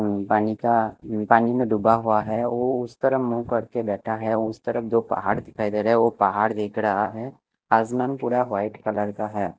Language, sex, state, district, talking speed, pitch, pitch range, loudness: Hindi, male, Chandigarh, Chandigarh, 215 wpm, 110 Hz, 105-120 Hz, -23 LUFS